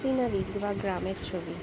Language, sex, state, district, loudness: Bengali, female, West Bengal, Jhargram, -31 LUFS